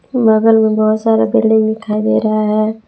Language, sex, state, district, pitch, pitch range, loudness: Hindi, female, Jharkhand, Palamu, 215 Hz, 215-220 Hz, -13 LUFS